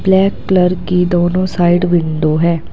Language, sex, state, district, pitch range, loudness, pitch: Hindi, male, Uttar Pradesh, Saharanpur, 170-185 Hz, -13 LUFS, 180 Hz